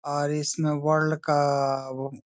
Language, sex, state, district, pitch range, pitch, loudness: Hindi, male, Maharashtra, Nagpur, 135-150 Hz, 145 Hz, -25 LUFS